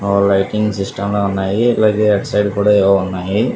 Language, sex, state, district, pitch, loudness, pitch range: Telugu, male, Andhra Pradesh, Visakhapatnam, 100 Hz, -15 LUFS, 100-105 Hz